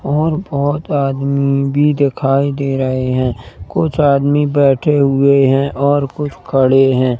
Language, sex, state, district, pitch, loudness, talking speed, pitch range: Hindi, male, Madhya Pradesh, Katni, 140 Hz, -14 LUFS, 140 wpm, 135-145 Hz